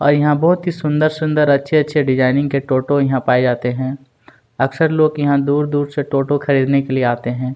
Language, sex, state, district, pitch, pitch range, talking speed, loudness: Hindi, male, Chhattisgarh, Kabirdham, 140 Hz, 130-150 Hz, 190 wpm, -16 LUFS